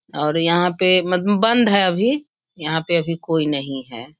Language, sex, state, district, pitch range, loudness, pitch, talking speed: Hindi, female, Bihar, Sitamarhi, 155-190 Hz, -18 LUFS, 170 Hz, 200 wpm